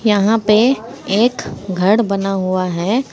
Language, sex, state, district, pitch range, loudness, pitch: Hindi, female, Uttar Pradesh, Saharanpur, 195-230 Hz, -16 LUFS, 210 Hz